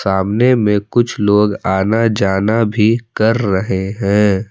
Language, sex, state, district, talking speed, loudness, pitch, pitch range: Hindi, male, Jharkhand, Palamu, 135 wpm, -14 LUFS, 105 Hz, 100-115 Hz